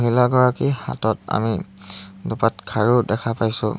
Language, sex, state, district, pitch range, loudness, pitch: Assamese, male, Assam, Hailakandi, 105-120 Hz, -20 LUFS, 115 Hz